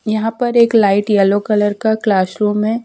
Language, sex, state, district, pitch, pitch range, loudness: Hindi, female, Madhya Pradesh, Dhar, 215 Hz, 205-225 Hz, -14 LUFS